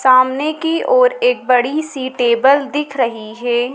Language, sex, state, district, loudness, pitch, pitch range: Hindi, female, Madhya Pradesh, Dhar, -15 LUFS, 265 Hz, 245-310 Hz